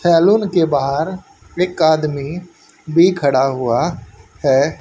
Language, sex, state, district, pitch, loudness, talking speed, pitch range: Hindi, male, Haryana, Charkhi Dadri, 160 Hz, -16 LUFS, 110 wpm, 140-180 Hz